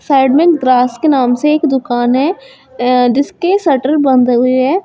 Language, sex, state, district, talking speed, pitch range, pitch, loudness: Hindi, female, Uttar Pradesh, Shamli, 175 wpm, 250-300 Hz, 265 Hz, -12 LUFS